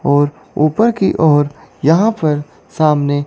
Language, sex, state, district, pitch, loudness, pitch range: Hindi, female, Chandigarh, Chandigarh, 150 Hz, -14 LUFS, 145-160 Hz